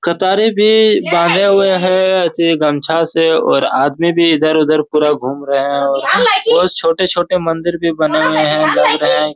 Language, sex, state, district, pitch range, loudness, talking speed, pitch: Hindi, male, Chhattisgarh, Raigarh, 150-185 Hz, -13 LUFS, 175 wpm, 165 Hz